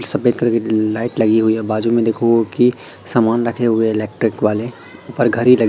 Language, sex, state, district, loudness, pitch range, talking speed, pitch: Hindi, male, Madhya Pradesh, Katni, -16 LUFS, 110-120 Hz, 210 wpm, 115 Hz